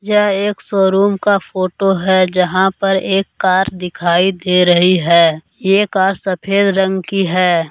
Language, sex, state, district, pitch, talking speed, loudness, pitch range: Hindi, male, Jharkhand, Deoghar, 190 Hz, 155 wpm, -14 LUFS, 180-195 Hz